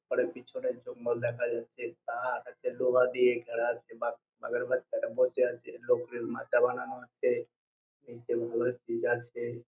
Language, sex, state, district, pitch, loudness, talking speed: Bengali, male, West Bengal, Jhargram, 125 Hz, -32 LUFS, 140 wpm